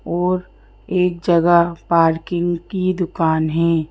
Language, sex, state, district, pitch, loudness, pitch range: Hindi, female, Madhya Pradesh, Bhopal, 175 Hz, -18 LUFS, 165-180 Hz